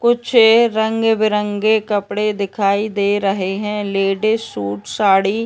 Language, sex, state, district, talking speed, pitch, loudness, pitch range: Hindi, female, Uttar Pradesh, Deoria, 120 wpm, 210 Hz, -16 LUFS, 195-220 Hz